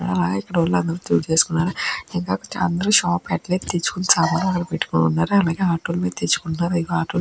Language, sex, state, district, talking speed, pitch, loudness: Telugu, female, Andhra Pradesh, Chittoor, 140 wpm, 170 Hz, -20 LUFS